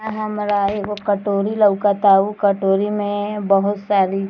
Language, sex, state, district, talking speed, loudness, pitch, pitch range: Bhojpuri, female, Bihar, East Champaran, 155 wpm, -18 LUFS, 205 Hz, 200-210 Hz